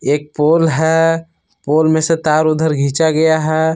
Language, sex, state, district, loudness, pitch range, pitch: Hindi, male, Jharkhand, Palamu, -14 LUFS, 150-160 Hz, 160 Hz